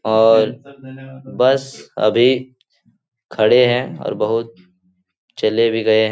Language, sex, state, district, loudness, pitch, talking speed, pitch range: Hindi, male, Bihar, Lakhisarai, -16 LUFS, 115 Hz, 110 wpm, 110-130 Hz